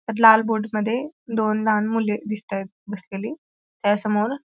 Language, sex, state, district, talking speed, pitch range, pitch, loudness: Marathi, female, Maharashtra, Pune, 135 wpm, 210-225 Hz, 215 Hz, -22 LUFS